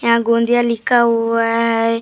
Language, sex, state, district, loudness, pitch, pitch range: Hindi, female, Maharashtra, Gondia, -15 LUFS, 230 Hz, 230-235 Hz